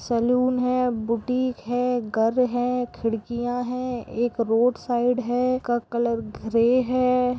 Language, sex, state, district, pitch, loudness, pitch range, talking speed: Hindi, female, Goa, North and South Goa, 245 Hz, -24 LUFS, 235-250 Hz, 120 wpm